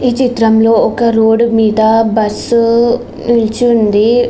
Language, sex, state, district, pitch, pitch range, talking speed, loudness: Telugu, female, Andhra Pradesh, Srikakulam, 230 Hz, 220-240 Hz, 110 wpm, -11 LUFS